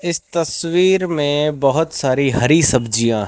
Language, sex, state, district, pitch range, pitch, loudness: Hindi, male, Rajasthan, Bikaner, 130-165 Hz, 150 Hz, -16 LUFS